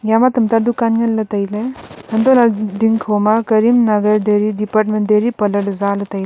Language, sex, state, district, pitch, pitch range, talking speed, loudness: Wancho, female, Arunachal Pradesh, Longding, 215 Hz, 210-230 Hz, 170 wpm, -15 LUFS